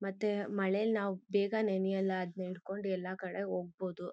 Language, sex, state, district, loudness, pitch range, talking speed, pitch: Kannada, female, Karnataka, Mysore, -35 LUFS, 185-200 Hz, 145 wpm, 190 Hz